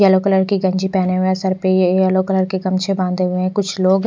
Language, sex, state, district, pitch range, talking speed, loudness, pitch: Hindi, male, Odisha, Nuapada, 185-190 Hz, 280 wpm, -17 LUFS, 190 Hz